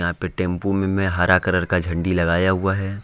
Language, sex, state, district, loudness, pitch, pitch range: Hindi, male, Jharkhand, Ranchi, -20 LUFS, 90 Hz, 90-95 Hz